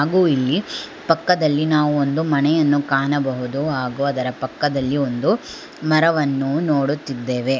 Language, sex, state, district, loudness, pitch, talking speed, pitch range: Kannada, female, Karnataka, Bangalore, -19 LUFS, 145 Hz, 105 wpm, 135-155 Hz